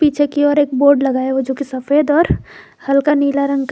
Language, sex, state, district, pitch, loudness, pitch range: Hindi, female, Jharkhand, Garhwa, 280 Hz, -15 LUFS, 270-290 Hz